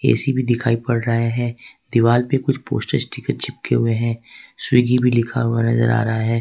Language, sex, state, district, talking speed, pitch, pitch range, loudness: Hindi, male, Jharkhand, Ranchi, 205 wpm, 115 Hz, 115-125 Hz, -19 LUFS